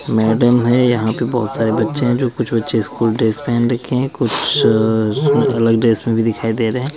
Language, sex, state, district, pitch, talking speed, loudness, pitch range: Hindi, male, Bihar, East Champaran, 115 Hz, 225 wpm, -16 LUFS, 110-125 Hz